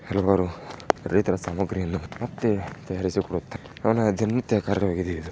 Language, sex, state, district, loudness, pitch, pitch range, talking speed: Kannada, male, Karnataka, Shimoga, -26 LUFS, 100 Hz, 90-110 Hz, 115 wpm